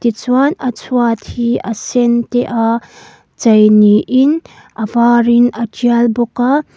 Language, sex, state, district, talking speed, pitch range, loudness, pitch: Mizo, female, Mizoram, Aizawl, 150 wpm, 230-245 Hz, -13 LUFS, 235 Hz